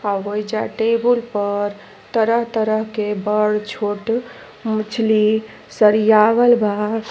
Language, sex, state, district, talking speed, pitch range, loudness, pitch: Bhojpuri, female, Uttar Pradesh, Deoria, 100 wpm, 210-225 Hz, -18 LUFS, 215 Hz